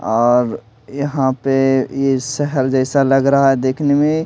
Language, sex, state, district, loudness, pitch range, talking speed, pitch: Hindi, male, Delhi, New Delhi, -16 LUFS, 130-140 Hz, 170 wpm, 135 Hz